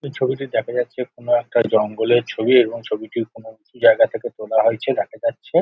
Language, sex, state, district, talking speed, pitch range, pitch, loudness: Bengali, male, West Bengal, Jhargram, 190 wpm, 110-125 Hz, 120 Hz, -19 LUFS